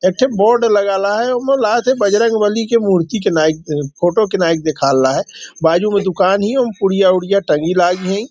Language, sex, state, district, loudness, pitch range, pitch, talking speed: Hindi, male, Maharashtra, Nagpur, -14 LUFS, 175-220 Hz, 200 Hz, 145 wpm